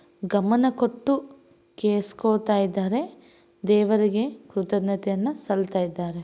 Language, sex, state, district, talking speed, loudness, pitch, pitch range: Kannada, female, Karnataka, Raichur, 65 wpm, -24 LUFS, 210 Hz, 195-240 Hz